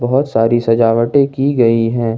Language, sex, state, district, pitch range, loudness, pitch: Hindi, male, Jharkhand, Ranchi, 115-135 Hz, -13 LUFS, 115 Hz